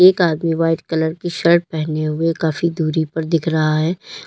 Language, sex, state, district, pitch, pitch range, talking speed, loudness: Hindi, female, Uttar Pradesh, Lalitpur, 165 Hz, 160-170 Hz, 195 wpm, -18 LUFS